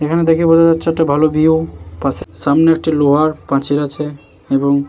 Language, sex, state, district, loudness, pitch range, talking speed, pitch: Bengali, male, West Bengal, Jalpaiguri, -14 LUFS, 140-160 Hz, 170 wpm, 150 Hz